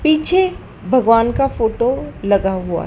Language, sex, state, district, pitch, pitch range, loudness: Hindi, female, Madhya Pradesh, Dhar, 235 Hz, 200-280 Hz, -16 LUFS